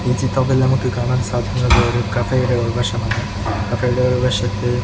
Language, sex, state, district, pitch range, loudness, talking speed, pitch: Malayalam, male, Kerala, Kozhikode, 115-125 Hz, -18 LUFS, 125 wpm, 120 Hz